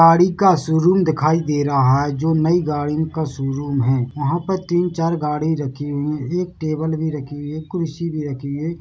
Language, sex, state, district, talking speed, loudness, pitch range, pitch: Hindi, male, Chhattisgarh, Bilaspur, 210 wpm, -19 LUFS, 145-165 Hz, 155 Hz